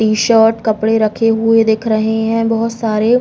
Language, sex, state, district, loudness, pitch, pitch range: Hindi, female, Uttar Pradesh, Jalaun, -13 LUFS, 225 Hz, 220-225 Hz